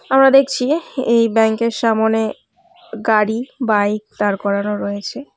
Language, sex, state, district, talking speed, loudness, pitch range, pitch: Bengali, female, West Bengal, Cooch Behar, 125 wpm, -17 LUFS, 210-255 Hz, 225 Hz